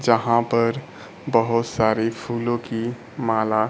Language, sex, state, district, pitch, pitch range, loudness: Hindi, male, Bihar, Kaimur, 115 Hz, 115-120 Hz, -22 LUFS